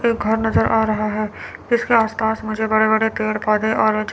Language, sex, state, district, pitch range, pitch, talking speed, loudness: Hindi, female, Chandigarh, Chandigarh, 215-225 Hz, 220 Hz, 220 wpm, -18 LUFS